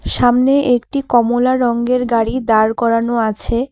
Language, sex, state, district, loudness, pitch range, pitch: Bengali, female, West Bengal, Alipurduar, -15 LUFS, 230-250 Hz, 240 Hz